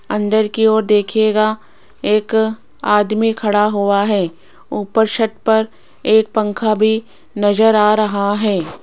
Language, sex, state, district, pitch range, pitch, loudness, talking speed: Hindi, female, Rajasthan, Jaipur, 205-220 Hz, 215 Hz, -15 LUFS, 130 wpm